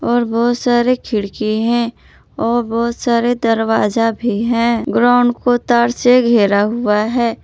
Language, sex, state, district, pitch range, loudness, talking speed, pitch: Hindi, female, Jharkhand, Palamu, 225-240 Hz, -15 LUFS, 135 wpm, 235 Hz